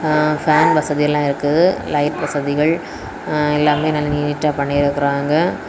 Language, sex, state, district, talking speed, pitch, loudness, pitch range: Tamil, female, Tamil Nadu, Kanyakumari, 125 wpm, 150 Hz, -17 LUFS, 145-155 Hz